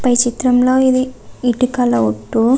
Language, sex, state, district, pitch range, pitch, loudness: Telugu, female, Andhra Pradesh, Visakhapatnam, 240-255 Hz, 250 Hz, -15 LUFS